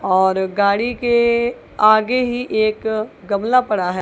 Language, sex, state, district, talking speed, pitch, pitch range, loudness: Hindi, female, Punjab, Kapurthala, 135 wpm, 215 Hz, 200-240 Hz, -17 LUFS